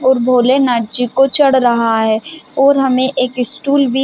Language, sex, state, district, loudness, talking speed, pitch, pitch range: Hindi, female, Chhattisgarh, Bilaspur, -13 LUFS, 195 wpm, 260 Hz, 245-270 Hz